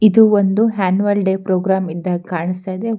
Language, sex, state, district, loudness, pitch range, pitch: Kannada, female, Karnataka, Bangalore, -16 LUFS, 185-205 Hz, 190 Hz